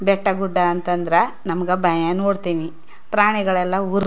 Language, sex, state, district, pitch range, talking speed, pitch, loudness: Kannada, female, Karnataka, Chamarajanagar, 175-195 Hz, 135 wpm, 185 Hz, -20 LUFS